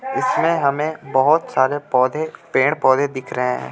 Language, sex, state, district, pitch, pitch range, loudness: Hindi, male, Jharkhand, Ranchi, 140 Hz, 130-155 Hz, -18 LUFS